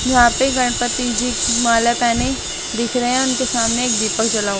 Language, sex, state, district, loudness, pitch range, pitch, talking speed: Hindi, female, Delhi, New Delhi, -16 LUFS, 235-250 Hz, 245 Hz, 195 wpm